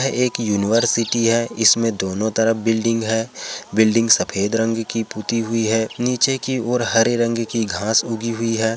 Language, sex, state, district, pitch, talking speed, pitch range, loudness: Hindi, male, Andhra Pradesh, Chittoor, 115 Hz, 170 wpm, 110-115 Hz, -19 LUFS